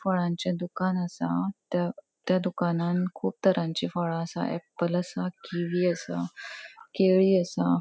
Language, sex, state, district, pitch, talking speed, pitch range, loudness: Konkani, female, Goa, North and South Goa, 175 Hz, 125 wpm, 170-185 Hz, -28 LUFS